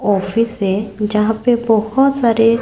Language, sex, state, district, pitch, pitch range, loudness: Hindi, female, Chhattisgarh, Raipur, 220 Hz, 210-230 Hz, -15 LUFS